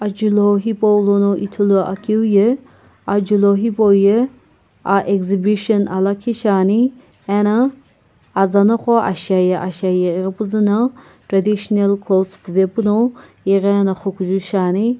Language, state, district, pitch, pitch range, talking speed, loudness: Sumi, Nagaland, Kohima, 200 Hz, 195-215 Hz, 100 wpm, -16 LUFS